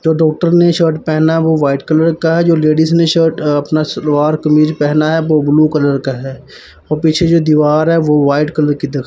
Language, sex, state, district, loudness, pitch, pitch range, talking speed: Hindi, male, Punjab, Pathankot, -12 LUFS, 155 Hz, 150-160 Hz, 240 wpm